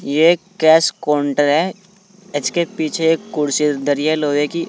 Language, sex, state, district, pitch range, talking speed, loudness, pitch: Hindi, male, Uttar Pradesh, Saharanpur, 145-170 Hz, 155 wpm, -17 LUFS, 155 Hz